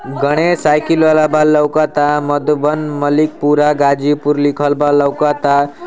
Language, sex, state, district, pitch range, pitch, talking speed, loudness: Bhojpuri, male, Uttar Pradesh, Ghazipur, 145-155 Hz, 150 Hz, 145 wpm, -13 LUFS